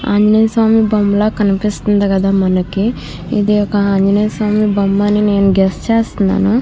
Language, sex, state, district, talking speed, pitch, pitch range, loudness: Telugu, female, Andhra Pradesh, Krishna, 145 wpm, 205 Hz, 195-215 Hz, -13 LUFS